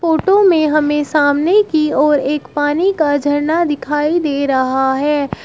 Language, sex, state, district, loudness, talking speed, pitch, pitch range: Hindi, female, Uttar Pradesh, Shamli, -14 LUFS, 155 wpm, 295 Hz, 285-320 Hz